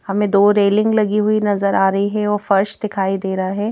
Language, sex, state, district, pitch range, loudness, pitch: Hindi, female, Madhya Pradesh, Bhopal, 195-210 Hz, -17 LUFS, 205 Hz